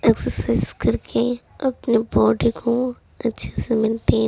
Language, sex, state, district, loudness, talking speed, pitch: Hindi, female, Delhi, New Delhi, -21 LUFS, 125 wpm, 230 Hz